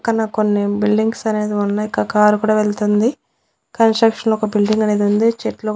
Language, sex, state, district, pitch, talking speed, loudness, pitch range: Telugu, female, Andhra Pradesh, Annamaya, 215 Hz, 155 wpm, -17 LUFS, 210-220 Hz